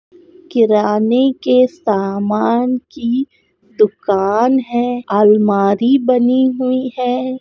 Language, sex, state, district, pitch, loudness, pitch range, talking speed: Hindi, female, Goa, North and South Goa, 245 Hz, -15 LUFS, 210-260 Hz, 80 wpm